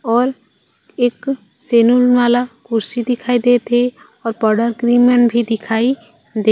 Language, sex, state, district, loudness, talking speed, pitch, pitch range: Chhattisgarhi, female, Chhattisgarh, Raigarh, -15 LUFS, 140 wpm, 240 Hz, 230-245 Hz